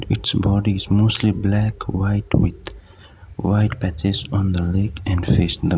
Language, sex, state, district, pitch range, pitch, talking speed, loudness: English, male, Sikkim, Gangtok, 95-105 Hz, 100 Hz, 155 wpm, -20 LUFS